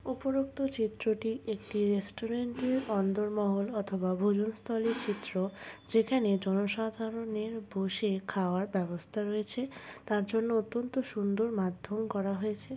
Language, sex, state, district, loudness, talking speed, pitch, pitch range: Bengali, female, West Bengal, North 24 Parganas, -33 LUFS, 110 wpm, 215 Hz, 200-225 Hz